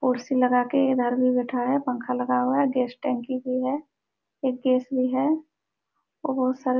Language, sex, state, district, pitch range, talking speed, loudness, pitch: Hindi, female, Jharkhand, Sahebganj, 250-270 Hz, 195 wpm, -25 LUFS, 255 Hz